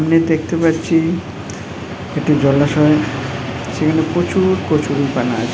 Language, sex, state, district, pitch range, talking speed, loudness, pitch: Bengali, female, West Bengal, Malda, 130-160 Hz, 95 wpm, -16 LUFS, 150 Hz